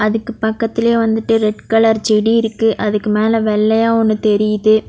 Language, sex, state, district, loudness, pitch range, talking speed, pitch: Tamil, female, Tamil Nadu, Nilgiris, -15 LUFS, 215-225 Hz, 145 wpm, 220 Hz